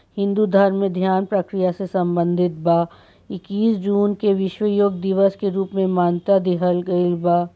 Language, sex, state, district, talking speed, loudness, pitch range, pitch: Bhojpuri, female, Bihar, Saran, 165 wpm, -19 LUFS, 180-200 Hz, 190 Hz